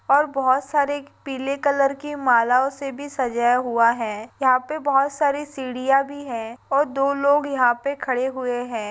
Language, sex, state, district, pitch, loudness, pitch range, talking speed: Hindi, female, Rajasthan, Nagaur, 270 Hz, -21 LUFS, 250-280 Hz, 180 wpm